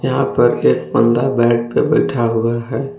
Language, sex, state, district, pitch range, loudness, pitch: Hindi, male, Jharkhand, Palamu, 115-120 Hz, -15 LUFS, 115 Hz